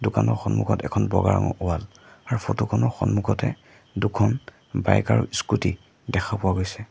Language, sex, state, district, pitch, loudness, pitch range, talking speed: Assamese, male, Assam, Sonitpur, 105 Hz, -24 LUFS, 95-115 Hz, 145 wpm